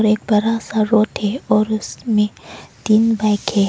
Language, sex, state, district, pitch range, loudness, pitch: Hindi, female, Arunachal Pradesh, Longding, 210-220 Hz, -17 LUFS, 215 Hz